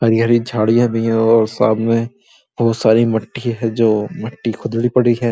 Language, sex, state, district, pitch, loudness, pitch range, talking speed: Hindi, male, Uttar Pradesh, Muzaffarnagar, 115 Hz, -16 LUFS, 110-120 Hz, 180 wpm